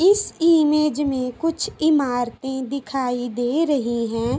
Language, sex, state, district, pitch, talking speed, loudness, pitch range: Hindi, female, Uttar Pradesh, Ghazipur, 275 Hz, 125 wpm, -21 LUFS, 245-315 Hz